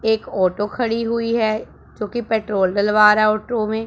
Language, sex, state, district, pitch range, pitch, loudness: Hindi, female, Punjab, Pathankot, 210-230 Hz, 215 Hz, -19 LUFS